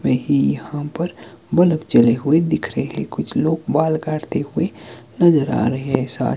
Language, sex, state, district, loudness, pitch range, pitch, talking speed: Hindi, male, Himachal Pradesh, Shimla, -19 LUFS, 130-160 Hz, 150 Hz, 190 wpm